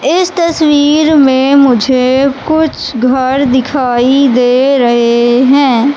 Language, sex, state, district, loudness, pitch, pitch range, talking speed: Hindi, female, Madhya Pradesh, Katni, -9 LUFS, 265 Hz, 250-285 Hz, 100 wpm